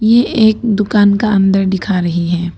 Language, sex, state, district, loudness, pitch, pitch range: Hindi, female, Arunachal Pradesh, Papum Pare, -13 LUFS, 200 Hz, 190-215 Hz